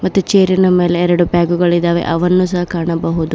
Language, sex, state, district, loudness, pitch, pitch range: Kannada, female, Karnataka, Bangalore, -14 LUFS, 175 Hz, 170-180 Hz